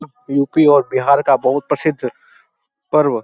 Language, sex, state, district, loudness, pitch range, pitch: Hindi, male, Uttar Pradesh, Deoria, -15 LUFS, 135-145 Hz, 140 Hz